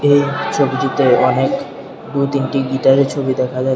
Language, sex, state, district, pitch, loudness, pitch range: Bengali, male, Tripura, Unakoti, 135 Hz, -16 LUFS, 130-140 Hz